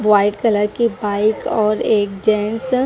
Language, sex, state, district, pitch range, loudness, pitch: Hindi, female, Haryana, Rohtak, 205-225 Hz, -17 LUFS, 215 Hz